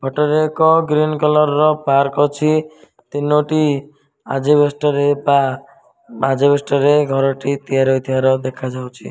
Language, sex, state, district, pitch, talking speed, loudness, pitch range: Odia, male, Odisha, Malkangiri, 145 Hz, 120 wpm, -16 LUFS, 135-150 Hz